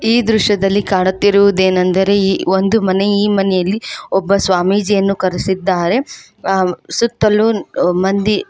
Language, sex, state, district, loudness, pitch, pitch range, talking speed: Kannada, female, Karnataka, Koppal, -14 LUFS, 195 Hz, 190-210 Hz, 100 wpm